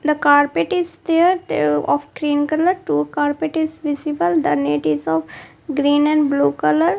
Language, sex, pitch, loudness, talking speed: English, female, 290 Hz, -18 LUFS, 180 wpm